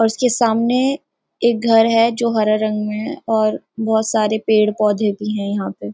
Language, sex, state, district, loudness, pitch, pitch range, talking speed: Hindi, female, Uttarakhand, Uttarkashi, -17 LUFS, 220 Hz, 210-230 Hz, 200 wpm